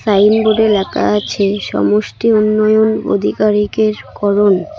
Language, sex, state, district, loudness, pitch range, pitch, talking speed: Bengali, female, West Bengal, Cooch Behar, -13 LUFS, 195-215 Hz, 210 Hz, 100 wpm